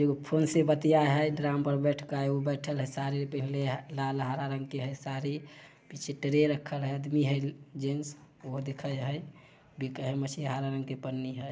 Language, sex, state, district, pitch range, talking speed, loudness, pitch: Maithili, male, Bihar, Samastipur, 135-145 Hz, 190 wpm, -32 LUFS, 140 Hz